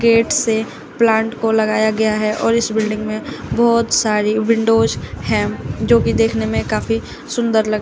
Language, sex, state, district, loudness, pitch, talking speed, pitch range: Hindi, female, Uttar Pradesh, Shamli, -17 LUFS, 220 Hz, 175 wpm, 215-225 Hz